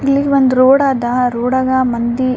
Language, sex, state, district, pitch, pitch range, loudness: Kannada, female, Karnataka, Raichur, 255 Hz, 245-270 Hz, -13 LUFS